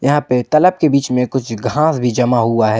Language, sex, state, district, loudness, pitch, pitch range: Hindi, male, Jharkhand, Ranchi, -15 LUFS, 125 Hz, 120-145 Hz